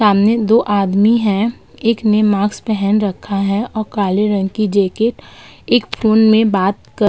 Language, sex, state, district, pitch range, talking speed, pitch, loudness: Hindi, female, Uttar Pradesh, Budaun, 200-220 Hz, 180 wpm, 210 Hz, -15 LUFS